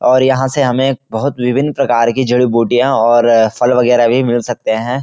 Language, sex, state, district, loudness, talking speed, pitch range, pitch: Hindi, male, Uttarakhand, Uttarkashi, -13 LUFS, 190 wpm, 120-130 Hz, 125 Hz